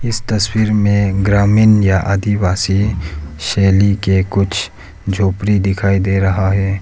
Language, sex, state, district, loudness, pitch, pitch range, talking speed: Hindi, male, Arunachal Pradesh, Lower Dibang Valley, -14 LUFS, 100 Hz, 95-105 Hz, 125 wpm